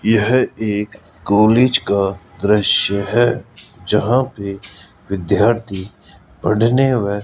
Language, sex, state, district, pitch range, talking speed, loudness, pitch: Hindi, male, Rajasthan, Jaipur, 100-115 Hz, 100 wpm, -16 LUFS, 105 Hz